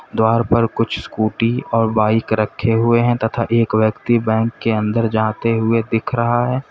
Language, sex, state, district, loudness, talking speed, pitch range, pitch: Hindi, male, Uttar Pradesh, Lalitpur, -17 LUFS, 180 wpm, 110-115 Hz, 115 Hz